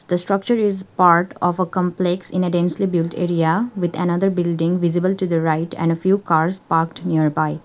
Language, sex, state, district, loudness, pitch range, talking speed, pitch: English, female, Sikkim, Gangtok, -19 LUFS, 165-185 Hz, 195 wpm, 175 Hz